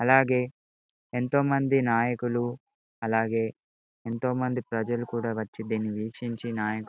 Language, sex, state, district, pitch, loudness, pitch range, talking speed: Telugu, male, Telangana, Karimnagar, 120 Hz, -28 LUFS, 115-125 Hz, 120 wpm